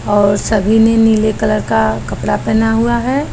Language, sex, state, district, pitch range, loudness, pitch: Hindi, female, Maharashtra, Chandrapur, 205-225 Hz, -13 LUFS, 215 Hz